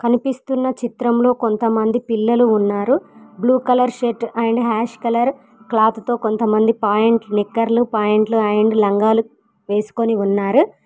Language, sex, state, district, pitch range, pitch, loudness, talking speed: Telugu, female, Telangana, Mahabubabad, 215-240 Hz, 230 Hz, -17 LUFS, 115 wpm